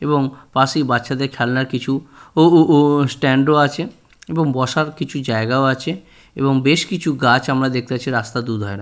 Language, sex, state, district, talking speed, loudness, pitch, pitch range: Bengali, male, West Bengal, Purulia, 170 wpm, -17 LUFS, 135 Hz, 130-150 Hz